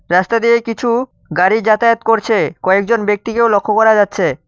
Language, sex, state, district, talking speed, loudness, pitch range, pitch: Bengali, male, West Bengal, Cooch Behar, 145 wpm, -14 LUFS, 200-230 Hz, 220 Hz